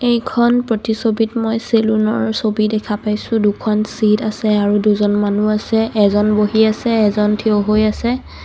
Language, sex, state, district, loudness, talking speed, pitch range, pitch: Assamese, female, Assam, Kamrup Metropolitan, -16 LUFS, 155 wpm, 210-225 Hz, 215 Hz